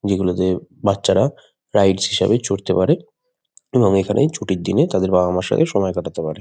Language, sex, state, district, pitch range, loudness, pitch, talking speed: Bengali, male, West Bengal, Kolkata, 90-105 Hz, -18 LUFS, 95 Hz, 160 wpm